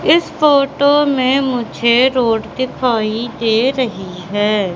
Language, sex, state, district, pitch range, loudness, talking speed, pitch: Hindi, female, Madhya Pradesh, Katni, 220-275 Hz, -15 LUFS, 115 wpm, 250 Hz